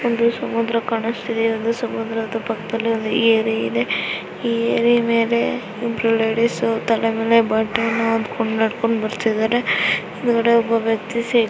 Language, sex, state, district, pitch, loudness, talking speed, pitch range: Kannada, female, Karnataka, Bijapur, 230 Hz, -19 LUFS, 115 wpm, 225-235 Hz